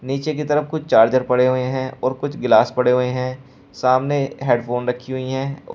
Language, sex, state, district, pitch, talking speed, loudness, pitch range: Hindi, male, Uttar Pradesh, Shamli, 130 Hz, 200 wpm, -19 LUFS, 125-135 Hz